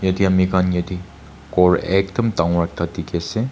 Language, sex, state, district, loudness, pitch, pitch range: Nagamese, male, Nagaland, Kohima, -19 LUFS, 90 Hz, 85-95 Hz